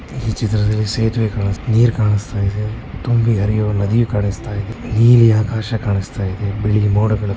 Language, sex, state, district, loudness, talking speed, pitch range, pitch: Kannada, male, Karnataka, Bellary, -17 LUFS, 165 wpm, 105-115 Hz, 110 Hz